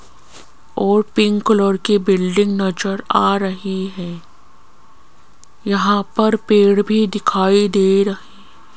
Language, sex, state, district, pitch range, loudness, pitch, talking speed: Hindi, female, Rajasthan, Jaipur, 195-210 Hz, -16 LUFS, 200 Hz, 115 wpm